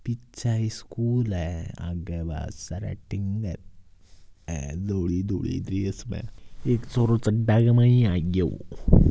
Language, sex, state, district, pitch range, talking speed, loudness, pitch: Hindi, male, Rajasthan, Nagaur, 90-115 Hz, 110 wpm, -26 LUFS, 100 Hz